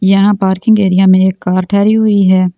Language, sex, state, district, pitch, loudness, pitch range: Hindi, female, Delhi, New Delhi, 190 Hz, -10 LUFS, 185-205 Hz